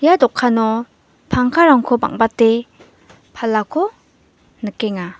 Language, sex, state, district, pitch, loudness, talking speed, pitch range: Garo, female, Meghalaya, West Garo Hills, 235 Hz, -16 LUFS, 70 wpm, 220-265 Hz